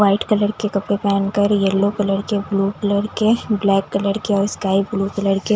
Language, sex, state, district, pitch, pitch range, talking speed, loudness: Hindi, female, Delhi, New Delhi, 200 Hz, 195-205 Hz, 205 wpm, -19 LUFS